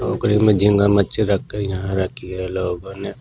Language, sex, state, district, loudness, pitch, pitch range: Hindi, male, Maharashtra, Washim, -19 LUFS, 100 Hz, 95-105 Hz